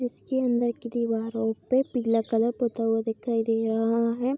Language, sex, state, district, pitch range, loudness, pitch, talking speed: Hindi, female, Bihar, Araria, 225-240 Hz, -26 LUFS, 230 Hz, 180 wpm